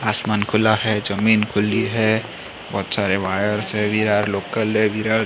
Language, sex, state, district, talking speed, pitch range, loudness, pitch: Hindi, male, Maharashtra, Mumbai Suburban, 150 wpm, 105-110 Hz, -20 LUFS, 105 Hz